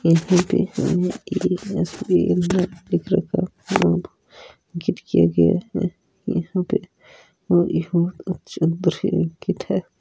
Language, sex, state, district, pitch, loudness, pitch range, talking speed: Hindi, female, Rajasthan, Nagaur, 180 Hz, -21 LUFS, 170-185 Hz, 65 wpm